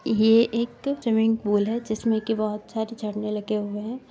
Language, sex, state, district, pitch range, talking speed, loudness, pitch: Hindi, female, Bihar, Saran, 215-230 Hz, 190 wpm, -24 LUFS, 220 Hz